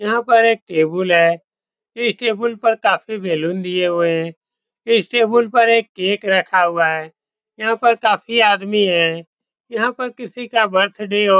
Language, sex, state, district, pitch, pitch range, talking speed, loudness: Hindi, male, Bihar, Saran, 210 Hz, 175-230 Hz, 175 wpm, -16 LUFS